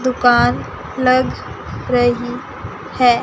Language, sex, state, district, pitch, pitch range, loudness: Hindi, female, Chandigarh, Chandigarh, 250 Hz, 245-255 Hz, -16 LUFS